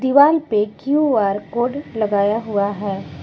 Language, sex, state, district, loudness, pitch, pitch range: Hindi, female, Jharkhand, Garhwa, -18 LUFS, 215 Hz, 200-275 Hz